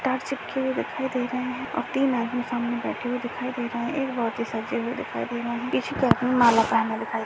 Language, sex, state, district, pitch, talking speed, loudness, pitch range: Hindi, female, Bihar, Purnia, 245 Hz, 240 wpm, -26 LUFS, 235-255 Hz